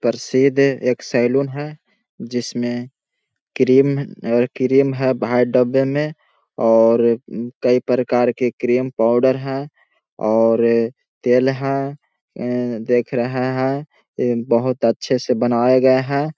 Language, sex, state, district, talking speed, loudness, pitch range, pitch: Hindi, male, Bihar, Jahanabad, 120 wpm, -18 LUFS, 120-135 Hz, 125 Hz